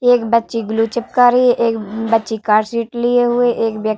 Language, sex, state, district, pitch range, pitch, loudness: Hindi, female, Uttar Pradesh, Varanasi, 225-240 Hz, 230 Hz, -15 LUFS